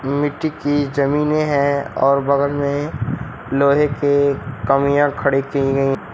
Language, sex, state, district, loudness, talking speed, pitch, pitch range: Hindi, male, Uttar Pradesh, Lucknow, -18 LUFS, 125 wpm, 140 Hz, 140-145 Hz